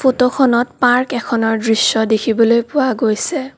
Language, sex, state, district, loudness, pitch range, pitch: Assamese, female, Assam, Kamrup Metropolitan, -15 LUFS, 225-260 Hz, 240 Hz